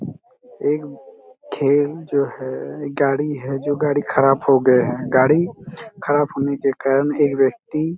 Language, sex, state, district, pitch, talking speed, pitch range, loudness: Hindi, male, Chhattisgarh, Raigarh, 145 Hz, 145 wpm, 135-150 Hz, -19 LUFS